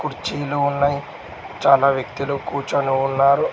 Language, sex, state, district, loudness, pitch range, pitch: Telugu, male, Telangana, Mahabubabad, -20 LUFS, 135-140 Hz, 140 Hz